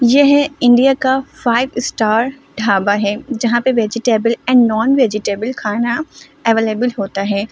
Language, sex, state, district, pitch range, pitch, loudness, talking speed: Hindi, female, Delhi, New Delhi, 220-260 Hz, 240 Hz, -15 LUFS, 145 wpm